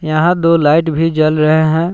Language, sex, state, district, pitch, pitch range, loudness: Hindi, male, Jharkhand, Palamu, 160 Hz, 155-165 Hz, -12 LUFS